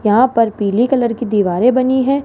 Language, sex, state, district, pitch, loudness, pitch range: Hindi, female, Rajasthan, Jaipur, 235 Hz, -14 LUFS, 215-255 Hz